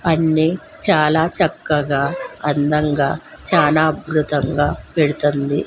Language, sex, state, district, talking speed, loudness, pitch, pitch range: Telugu, female, Andhra Pradesh, Sri Satya Sai, 75 wpm, -18 LUFS, 150 Hz, 145-160 Hz